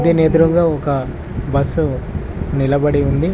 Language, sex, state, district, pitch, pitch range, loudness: Telugu, male, Telangana, Mahabubabad, 140 Hz, 130-160 Hz, -17 LUFS